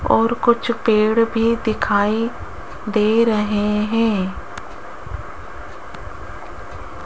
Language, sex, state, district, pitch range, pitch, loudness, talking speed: Hindi, female, Rajasthan, Jaipur, 205-230 Hz, 215 Hz, -18 LUFS, 70 wpm